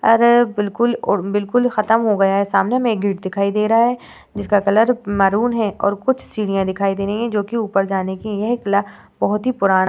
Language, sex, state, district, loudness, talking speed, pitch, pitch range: Hindi, female, Uttar Pradesh, Varanasi, -18 LUFS, 205 wpm, 205 Hz, 195-230 Hz